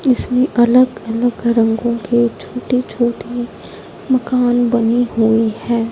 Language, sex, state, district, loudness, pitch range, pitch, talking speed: Hindi, female, Punjab, Fazilka, -15 LUFS, 230-245 Hz, 240 Hz, 110 wpm